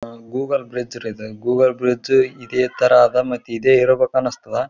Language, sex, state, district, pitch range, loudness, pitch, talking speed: Kannada, male, Karnataka, Raichur, 120-130 Hz, -18 LUFS, 125 Hz, 155 wpm